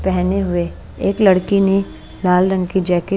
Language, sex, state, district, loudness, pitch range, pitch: Hindi, female, Bihar, West Champaran, -17 LUFS, 180-195 Hz, 190 Hz